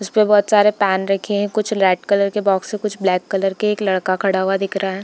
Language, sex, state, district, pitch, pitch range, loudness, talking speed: Hindi, female, Bihar, Darbhanga, 195 Hz, 190-210 Hz, -18 LUFS, 285 wpm